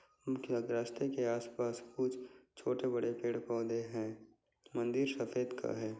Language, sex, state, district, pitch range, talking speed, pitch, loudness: Hindi, male, Bihar, Bhagalpur, 115-125 Hz, 150 wpm, 120 Hz, -38 LUFS